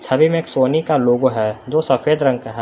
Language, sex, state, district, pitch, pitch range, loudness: Hindi, male, Jharkhand, Palamu, 130 Hz, 120-155 Hz, -17 LUFS